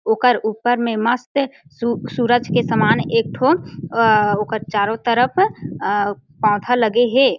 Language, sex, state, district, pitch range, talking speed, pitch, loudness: Chhattisgarhi, female, Chhattisgarh, Jashpur, 210-245 Hz, 155 wpm, 235 Hz, -18 LUFS